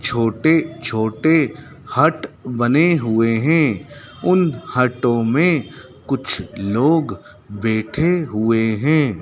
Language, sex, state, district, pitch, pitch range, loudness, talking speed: Hindi, male, Madhya Pradesh, Dhar, 130 Hz, 115-155 Hz, -18 LUFS, 85 wpm